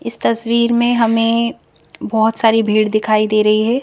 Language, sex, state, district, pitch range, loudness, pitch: Hindi, female, Madhya Pradesh, Bhopal, 215-235 Hz, -15 LUFS, 225 Hz